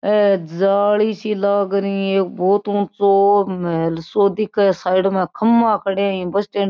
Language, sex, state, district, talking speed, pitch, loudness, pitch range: Marwari, female, Rajasthan, Nagaur, 170 wpm, 200 Hz, -17 LUFS, 195-205 Hz